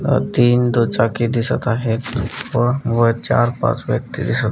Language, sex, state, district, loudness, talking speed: Marathi, female, Maharashtra, Dhule, -18 LUFS, 145 wpm